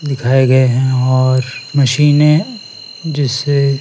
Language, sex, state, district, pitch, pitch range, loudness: Hindi, male, Himachal Pradesh, Shimla, 135 Hz, 130-145 Hz, -13 LUFS